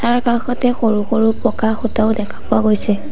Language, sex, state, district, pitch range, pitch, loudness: Assamese, female, Assam, Sonitpur, 215-240 Hz, 225 Hz, -16 LUFS